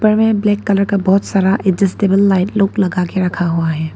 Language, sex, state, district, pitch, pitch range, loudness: Hindi, female, Arunachal Pradesh, Papum Pare, 195 Hz, 180-200 Hz, -15 LUFS